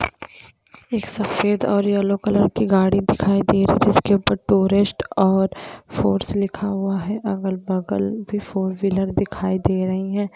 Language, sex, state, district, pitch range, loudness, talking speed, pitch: Hindi, female, Jharkhand, Jamtara, 190-205 Hz, -20 LUFS, 170 wpm, 195 Hz